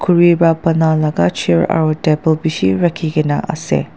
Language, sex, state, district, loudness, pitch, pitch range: Nagamese, female, Nagaland, Dimapur, -15 LUFS, 160 Hz, 150-165 Hz